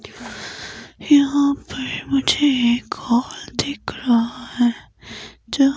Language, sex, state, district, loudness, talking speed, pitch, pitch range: Hindi, female, Himachal Pradesh, Shimla, -20 LUFS, 105 wpm, 275 Hz, 240-285 Hz